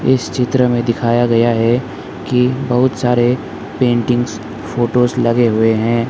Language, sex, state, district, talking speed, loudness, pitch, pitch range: Hindi, male, West Bengal, Alipurduar, 140 wpm, -15 LUFS, 120 Hz, 115-125 Hz